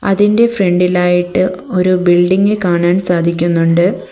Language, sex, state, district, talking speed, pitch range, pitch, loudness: Malayalam, female, Kerala, Kollam, 85 wpm, 175-190 Hz, 180 Hz, -12 LUFS